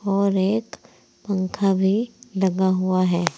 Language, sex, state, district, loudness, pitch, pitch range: Hindi, female, Uttar Pradesh, Saharanpur, -22 LUFS, 190 Hz, 185-200 Hz